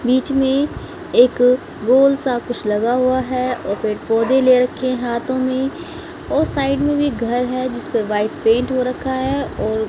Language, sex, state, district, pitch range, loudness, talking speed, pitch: Hindi, male, Haryana, Charkhi Dadri, 240-265 Hz, -18 LUFS, 175 wpm, 255 Hz